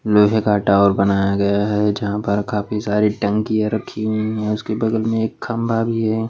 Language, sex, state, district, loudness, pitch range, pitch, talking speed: Hindi, male, Maharashtra, Washim, -19 LUFS, 105-110 Hz, 105 Hz, 200 wpm